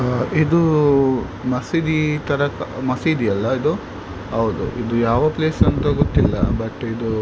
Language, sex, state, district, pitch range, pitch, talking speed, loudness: Kannada, male, Karnataka, Dakshina Kannada, 115-155 Hz, 130 Hz, 125 wpm, -19 LUFS